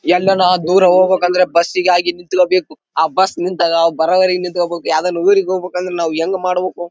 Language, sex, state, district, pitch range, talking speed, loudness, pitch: Kannada, male, Karnataka, Bellary, 170-185 Hz, 175 wpm, -14 LUFS, 180 Hz